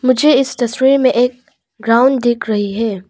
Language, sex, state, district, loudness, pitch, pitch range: Hindi, female, Arunachal Pradesh, Longding, -14 LUFS, 245 Hz, 225-260 Hz